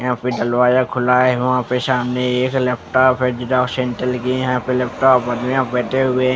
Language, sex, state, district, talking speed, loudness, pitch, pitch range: Hindi, male, Bihar, West Champaran, 200 wpm, -17 LUFS, 125 Hz, 125-130 Hz